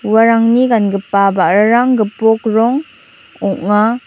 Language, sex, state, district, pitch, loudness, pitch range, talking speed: Garo, female, Meghalaya, North Garo Hills, 225 Hz, -13 LUFS, 205-235 Hz, 90 wpm